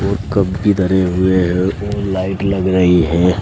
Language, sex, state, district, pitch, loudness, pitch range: Hindi, male, Uttar Pradesh, Saharanpur, 95 Hz, -15 LUFS, 90-100 Hz